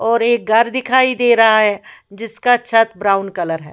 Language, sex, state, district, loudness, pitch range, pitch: Hindi, female, Bihar, West Champaran, -14 LUFS, 205-240 Hz, 225 Hz